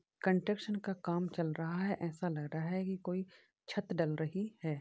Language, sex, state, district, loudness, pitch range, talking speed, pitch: Hindi, male, Uttar Pradesh, Varanasi, -38 LUFS, 165-195 Hz, 200 wpm, 180 Hz